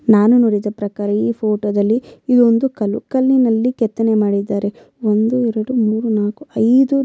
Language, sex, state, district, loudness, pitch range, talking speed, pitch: Kannada, female, Karnataka, Bellary, -16 LUFS, 210-245 Hz, 155 wpm, 225 Hz